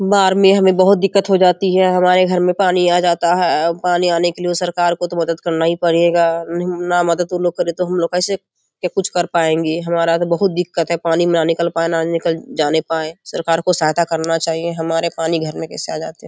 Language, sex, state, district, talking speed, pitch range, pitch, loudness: Hindi, female, Bihar, Kishanganj, 215 wpm, 165-180 Hz, 170 Hz, -16 LUFS